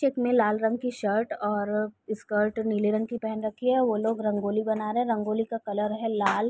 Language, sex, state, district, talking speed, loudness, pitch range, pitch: Hindi, female, Chhattisgarh, Raigarh, 230 wpm, -27 LUFS, 210-230 Hz, 215 Hz